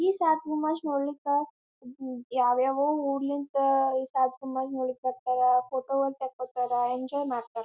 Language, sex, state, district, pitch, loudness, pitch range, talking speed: Kannada, male, Karnataka, Gulbarga, 265 Hz, -28 LUFS, 255-285 Hz, 125 wpm